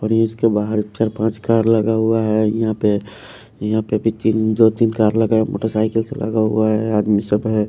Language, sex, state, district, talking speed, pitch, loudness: Hindi, male, Delhi, New Delhi, 225 wpm, 110 Hz, -18 LUFS